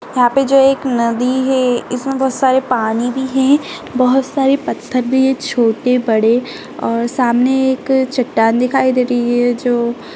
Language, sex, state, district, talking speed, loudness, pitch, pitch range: Hindi, female, Karnataka, Dakshina Kannada, 170 wpm, -15 LUFS, 255 Hz, 245-265 Hz